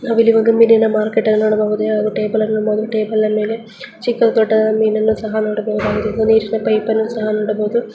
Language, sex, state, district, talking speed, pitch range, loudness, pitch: Kannada, female, Karnataka, Bijapur, 175 wpm, 215-225 Hz, -16 LUFS, 220 Hz